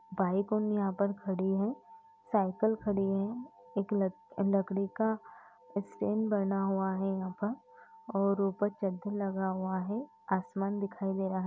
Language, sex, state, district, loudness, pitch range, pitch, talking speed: Hindi, female, Uttar Pradesh, Etah, -33 LUFS, 190-210 Hz, 195 Hz, 145 wpm